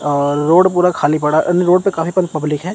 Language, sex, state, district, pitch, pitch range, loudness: Hindi, male, Chandigarh, Chandigarh, 165 Hz, 150-180 Hz, -14 LUFS